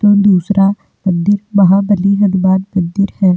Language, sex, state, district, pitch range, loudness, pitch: Hindi, female, Uttar Pradesh, Hamirpur, 190-205 Hz, -12 LUFS, 195 Hz